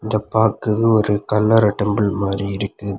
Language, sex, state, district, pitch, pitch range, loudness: Tamil, male, Tamil Nadu, Kanyakumari, 105 Hz, 100-110 Hz, -18 LUFS